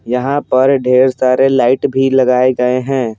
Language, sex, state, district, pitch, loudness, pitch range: Hindi, male, Bihar, Patna, 130 Hz, -12 LUFS, 125-135 Hz